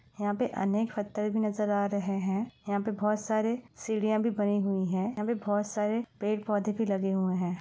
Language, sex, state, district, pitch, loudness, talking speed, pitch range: Hindi, female, Bihar, Saran, 210 Hz, -30 LUFS, 195 wpm, 200-215 Hz